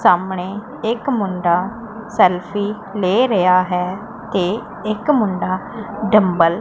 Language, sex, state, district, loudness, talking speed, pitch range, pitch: Punjabi, female, Punjab, Pathankot, -18 LUFS, 110 wpm, 180-220 Hz, 205 Hz